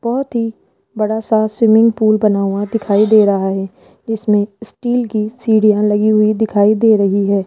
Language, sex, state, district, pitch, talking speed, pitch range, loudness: Hindi, female, Rajasthan, Jaipur, 215 Hz, 175 wpm, 205-225 Hz, -14 LUFS